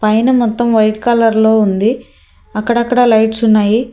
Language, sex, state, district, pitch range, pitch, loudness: Telugu, female, Telangana, Hyderabad, 215-240 Hz, 225 Hz, -12 LUFS